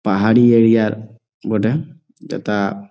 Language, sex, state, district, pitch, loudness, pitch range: Bengali, male, West Bengal, Jalpaiguri, 110 Hz, -16 LUFS, 105-115 Hz